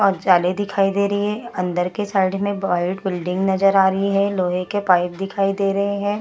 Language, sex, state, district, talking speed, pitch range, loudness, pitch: Hindi, female, Bihar, Gaya, 230 wpm, 185-200 Hz, -20 LUFS, 195 Hz